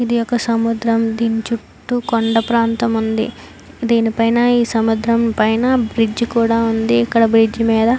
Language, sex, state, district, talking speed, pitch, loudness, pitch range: Telugu, female, Andhra Pradesh, Anantapur, 135 wpm, 230 Hz, -16 LUFS, 225-235 Hz